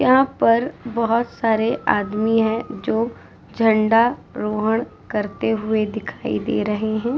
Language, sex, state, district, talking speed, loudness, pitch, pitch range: Hindi, female, Uttar Pradesh, Hamirpur, 115 wpm, -20 LUFS, 225 Hz, 215-235 Hz